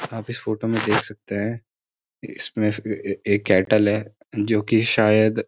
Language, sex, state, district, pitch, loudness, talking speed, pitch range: Hindi, male, Uttarakhand, Uttarkashi, 110 Hz, -21 LUFS, 165 wpm, 105-110 Hz